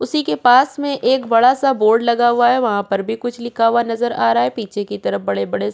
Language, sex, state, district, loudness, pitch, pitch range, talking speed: Hindi, female, Chhattisgarh, Korba, -16 LUFS, 235 Hz, 200-245 Hz, 285 wpm